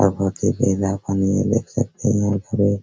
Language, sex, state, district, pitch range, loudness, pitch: Hindi, male, Bihar, Araria, 95-110 Hz, -21 LUFS, 100 Hz